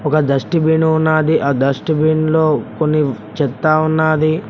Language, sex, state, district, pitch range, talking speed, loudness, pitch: Telugu, male, Telangana, Mahabubabad, 150-160 Hz, 145 wpm, -15 LUFS, 155 Hz